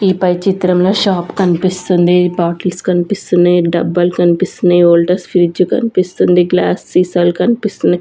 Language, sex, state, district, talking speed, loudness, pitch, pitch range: Telugu, female, Andhra Pradesh, Sri Satya Sai, 110 wpm, -12 LUFS, 180 Hz, 175-185 Hz